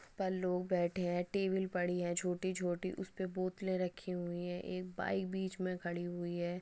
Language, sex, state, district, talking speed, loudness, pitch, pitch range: Hindi, female, Uttar Pradesh, Budaun, 180 wpm, -38 LUFS, 180 Hz, 175-185 Hz